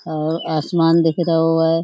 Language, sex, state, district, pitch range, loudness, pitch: Hindi, female, Uttar Pradesh, Budaun, 160-165 Hz, -17 LUFS, 165 Hz